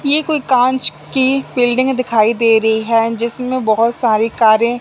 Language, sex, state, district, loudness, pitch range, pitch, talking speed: Hindi, male, Punjab, Fazilka, -14 LUFS, 225-260 Hz, 235 Hz, 175 wpm